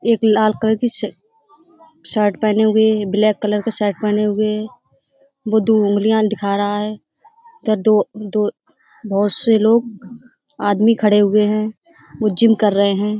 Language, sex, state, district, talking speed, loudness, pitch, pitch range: Hindi, female, Uttar Pradesh, Budaun, 155 wpm, -16 LUFS, 215 Hz, 210-230 Hz